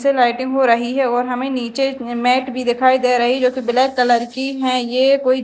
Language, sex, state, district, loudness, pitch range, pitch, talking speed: Hindi, female, Madhya Pradesh, Dhar, -17 LUFS, 245-260 Hz, 255 Hz, 210 wpm